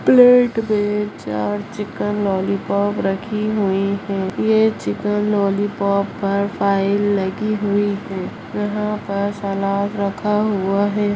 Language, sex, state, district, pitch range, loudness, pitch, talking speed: Hindi, female, Bihar, Lakhisarai, 195-210 Hz, -19 LUFS, 200 Hz, 120 wpm